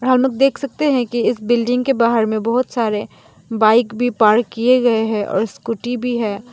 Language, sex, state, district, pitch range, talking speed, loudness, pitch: Hindi, female, Mizoram, Aizawl, 220-250 Hz, 210 wpm, -17 LUFS, 235 Hz